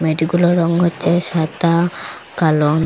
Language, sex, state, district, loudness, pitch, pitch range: Bengali, female, Assam, Hailakandi, -16 LUFS, 170 Hz, 160-175 Hz